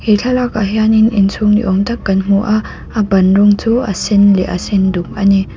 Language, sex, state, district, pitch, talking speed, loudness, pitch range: Mizo, female, Mizoram, Aizawl, 205 Hz, 225 wpm, -13 LUFS, 195-220 Hz